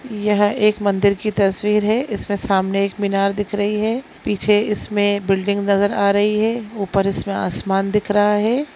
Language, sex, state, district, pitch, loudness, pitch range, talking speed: Hindi, female, Chhattisgarh, Sukma, 205 Hz, -18 LUFS, 200-210 Hz, 180 wpm